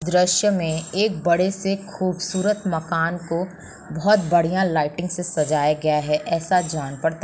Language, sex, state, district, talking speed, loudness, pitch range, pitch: Hindi, female, Bihar, Samastipur, 140 wpm, -21 LUFS, 160-185 Hz, 175 Hz